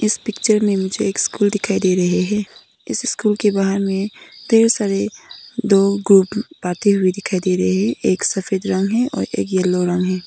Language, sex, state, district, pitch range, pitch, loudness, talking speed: Hindi, female, Nagaland, Kohima, 185-210 Hz, 195 Hz, -18 LUFS, 195 wpm